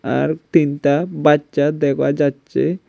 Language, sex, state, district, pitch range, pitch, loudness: Bengali, male, Tripura, West Tripura, 145-155 Hz, 150 Hz, -17 LUFS